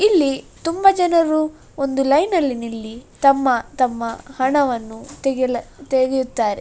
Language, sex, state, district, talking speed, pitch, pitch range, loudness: Kannada, female, Karnataka, Dakshina Kannada, 110 wpm, 270 Hz, 245-310 Hz, -19 LUFS